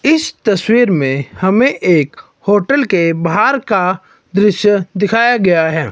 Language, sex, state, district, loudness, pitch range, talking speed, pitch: Hindi, male, Himachal Pradesh, Shimla, -13 LUFS, 170-230 Hz, 130 wpm, 200 Hz